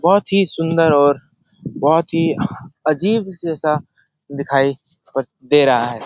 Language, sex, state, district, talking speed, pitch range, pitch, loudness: Hindi, male, Bihar, Jahanabad, 130 wpm, 140-170 Hz, 155 Hz, -17 LUFS